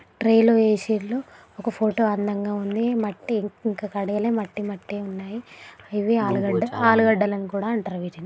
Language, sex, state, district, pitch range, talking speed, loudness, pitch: Telugu, female, Telangana, Karimnagar, 205-225 Hz, 145 wpm, -23 LUFS, 210 Hz